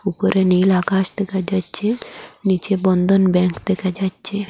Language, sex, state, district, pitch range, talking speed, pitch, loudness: Bengali, female, Assam, Hailakandi, 185-195 Hz, 135 wpm, 190 Hz, -19 LUFS